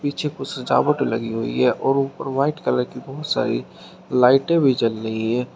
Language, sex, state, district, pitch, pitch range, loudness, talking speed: Hindi, male, Uttar Pradesh, Shamli, 135 Hz, 115-145 Hz, -21 LUFS, 195 wpm